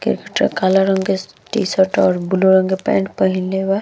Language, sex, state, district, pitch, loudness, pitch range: Bhojpuri, female, Uttar Pradesh, Deoria, 190 Hz, -17 LUFS, 190-195 Hz